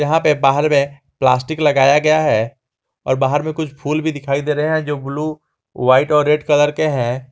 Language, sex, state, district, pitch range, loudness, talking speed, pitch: Hindi, male, Jharkhand, Garhwa, 135-155 Hz, -16 LUFS, 215 wpm, 145 Hz